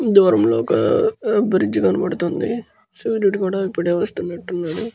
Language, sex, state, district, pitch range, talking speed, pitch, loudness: Telugu, male, Andhra Pradesh, Guntur, 175-230 Hz, 120 wpm, 195 Hz, -19 LUFS